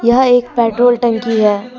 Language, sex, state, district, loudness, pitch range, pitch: Hindi, female, Jharkhand, Deoghar, -13 LUFS, 225-245 Hz, 235 Hz